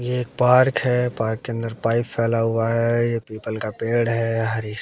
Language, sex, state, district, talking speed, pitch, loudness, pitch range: Hindi, male, Haryana, Jhajjar, 210 wpm, 115 Hz, -21 LUFS, 115-120 Hz